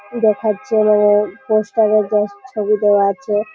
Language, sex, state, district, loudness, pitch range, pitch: Bengali, female, West Bengal, Malda, -16 LUFS, 205-215 Hz, 210 Hz